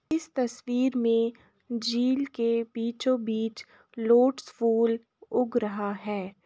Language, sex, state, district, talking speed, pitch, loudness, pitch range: Hindi, female, Uttar Pradesh, Jalaun, 110 wpm, 235 Hz, -27 LUFS, 230-255 Hz